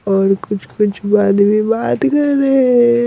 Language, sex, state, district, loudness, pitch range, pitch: Hindi, male, Bihar, Patna, -14 LUFS, 200-240 Hz, 210 Hz